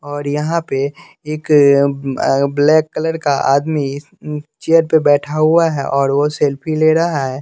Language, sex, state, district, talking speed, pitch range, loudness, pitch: Hindi, male, Bihar, West Champaran, 155 wpm, 140-155 Hz, -15 LUFS, 150 Hz